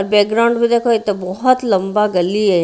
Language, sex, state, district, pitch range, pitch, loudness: Hindi, female, Haryana, Rohtak, 195-235 Hz, 210 Hz, -15 LUFS